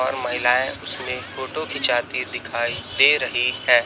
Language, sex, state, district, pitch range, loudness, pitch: Hindi, male, Chhattisgarh, Raipur, 120-130 Hz, -20 LUFS, 125 Hz